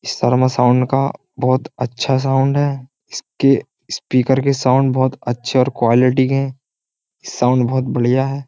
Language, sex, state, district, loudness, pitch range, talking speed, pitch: Hindi, male, Uttar Pradesh, Jyotiba Phule Nagar, -16 LUFS, 125-135 Hz, 150 wpm, 130 Hz